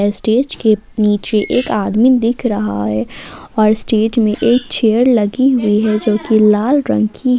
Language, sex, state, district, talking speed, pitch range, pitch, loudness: Hindi, female, Jharkhand, Palamu, 180 wpm, 210-240 Hz, 220 Hz, -14 LUFS